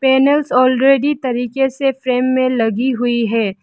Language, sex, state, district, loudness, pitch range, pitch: Hindi, female, Arunachal Pradesh, Lower Dibang Valley, -15 LUFS, 245-270 Hz, 255 Hz